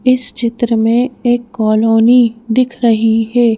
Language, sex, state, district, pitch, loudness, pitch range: Hindi, female, Madhya Pradesh, Bhopal, 235 Hz, -13 LUFS, 225-245 Hz